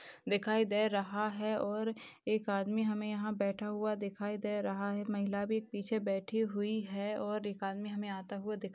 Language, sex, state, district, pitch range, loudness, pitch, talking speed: Hindi, female, Maharashtra, Aurangabad, 200-215 Hz, -36 LUFS, 210 Hz, 190 wpm